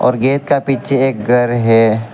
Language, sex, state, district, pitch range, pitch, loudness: Hindi, male, Arunachal Pradesh, Lower Dibang Valley, 115-135 Hz, 125 Hz, -13 LUFS